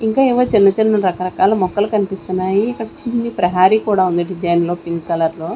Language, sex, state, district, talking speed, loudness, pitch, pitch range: Telugu, female, Andhra Pradesh, Sri Satya Sai, 185 wpm, -16 LUFS, 190 Hz, 175-220 Hz